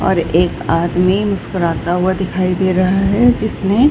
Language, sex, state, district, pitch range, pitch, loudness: Hindi, female, Bihar, Darbhanga, 175-200 Hz, 185 Hz, -15 LUFS